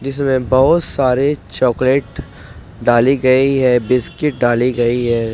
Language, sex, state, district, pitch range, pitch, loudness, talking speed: Hindi, male, Jharkhand, Ranchi, 120-135 Hz, 130 Hz, -15 LUFS, 125 wpm